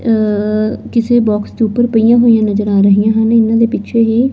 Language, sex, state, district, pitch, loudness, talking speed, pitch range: Punjabi, female, Punjab, Fazilka, 225 Hz, -12 LUFS, 205 wpm, 210-230 Hz